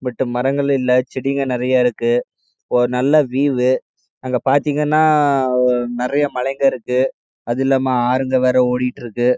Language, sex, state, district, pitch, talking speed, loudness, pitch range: Tamil, male, Karnataka, Chamarajanagar, 130 Hz, 115 wpm, -17 LUFS, 125-135 Hz